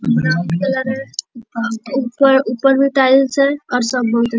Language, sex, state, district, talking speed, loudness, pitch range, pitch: Hindi, male, Bihar, Bhagalpur, 125 wpm, -16 LUFS, 230-270 Hz, 255 Hz